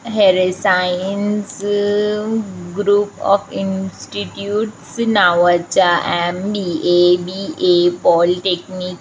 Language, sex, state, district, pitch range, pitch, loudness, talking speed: Marathi, female, Maharashtra, Chandrapur, 180-205 Hz, 195 Hz, -16 LUFS, 65 wpm